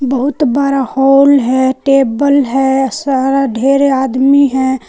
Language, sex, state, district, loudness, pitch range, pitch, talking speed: Hindi, female, Jharkhand, Palamu, -11 LUFS, 265-275 Hz, 270 Hz, 120 wpm